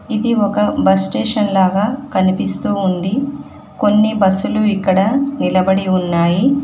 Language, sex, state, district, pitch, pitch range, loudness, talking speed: Telugu, female, Telangana, Mahabubabad, 200 Hz, 185-220 Hz, -15 LUFS, 110 wpm